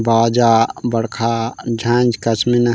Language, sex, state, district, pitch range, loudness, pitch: Chhattisgarhi, male, Chhattisgarh, Raigarh, 115-120 Hz, -16 LUFS, 115 Hz